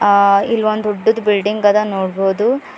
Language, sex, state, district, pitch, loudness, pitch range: Kannada, female, Karnataka, Bidar, 205 Hz, -15 LUFS, 200-215 Hz